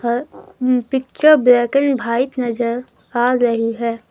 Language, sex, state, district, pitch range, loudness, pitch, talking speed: Hindi, female, Himachal Pradesh, Shimla, 235-260 Hz, -17 LUFS, 245 Hz, 130 wpm